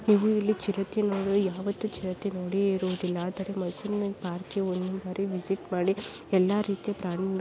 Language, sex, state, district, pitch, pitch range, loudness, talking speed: Kannada, female, Karnataka, Mysore, 195 Hz, 185-200 Hz, -29 LUFS, 155 wpm